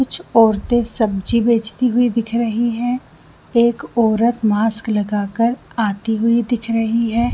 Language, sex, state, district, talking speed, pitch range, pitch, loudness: Hindi, female, Jharkhand, Sahebganj, 145 wpm, 220-240 Hz, 230 Hz, -17 LUFS